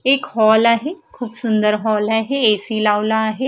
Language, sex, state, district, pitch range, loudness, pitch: Marathi, female, Maharashtra, Mumbai Suburban, 215-245 Hz, -16 LUFS, 220 Hz